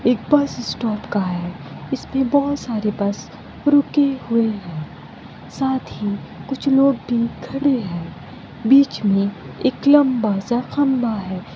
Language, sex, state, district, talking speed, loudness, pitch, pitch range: Hindi, female, Bihar, Kishanganj, 135 wpm, -20 LUFS, 235 Hz, 200-275 Hz